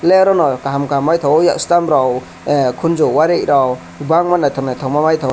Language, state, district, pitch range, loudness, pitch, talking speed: Kokborok, Tripura, West Tripura, 130-165 Hz, -14 LUFS, 140 Hz, 155 wpm